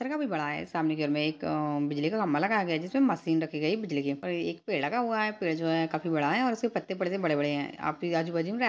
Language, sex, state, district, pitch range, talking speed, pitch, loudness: Hindi, female, Uttarakhand, Uttarkashi, 150-195 Hz, 305 wpm, 160 Hz, -29 LUFS